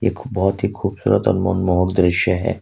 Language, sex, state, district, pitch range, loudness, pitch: Hindi, male, Jharkhand, Ranchi, 90-100 Hz, -18 LUFS, 95 Hz